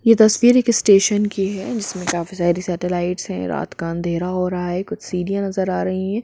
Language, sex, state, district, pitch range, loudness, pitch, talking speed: Hindi, female, Jharkhand, Jamtara, 180-210 Hz, -19 LUFS, 190 Hz, 240 wpm